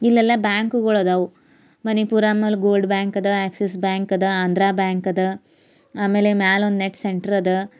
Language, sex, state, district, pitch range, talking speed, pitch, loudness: Kannada, female, Karnataka, Bijapur, 190-215 Hz, 130 wpm, 200 Hz, -19 LUFS